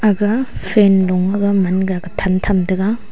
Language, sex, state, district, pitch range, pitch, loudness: Wancho, female, Arunachal Pradesh, Longding, 185-205 Hz, 195 Hz, -16 LUFS